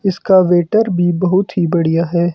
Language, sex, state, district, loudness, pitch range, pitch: Hindi, male, Himachal Pradesh, Shimla, -14 LUFS, 170-190 Hz, 175 Hz